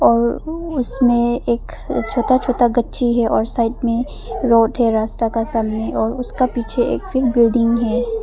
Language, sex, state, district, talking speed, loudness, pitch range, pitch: Hindi, female, Arunachal Pradesh, Papum Pare, 155 wpm, -18 LUFS, 230-250 Hz, 235 Hz